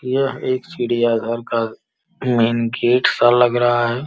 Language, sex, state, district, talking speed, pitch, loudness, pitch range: Hindi, male, Uttar Pradesh, Gorakhpur, 160 wpm, 120 Hz, -18 LUFS, 115-125 Hz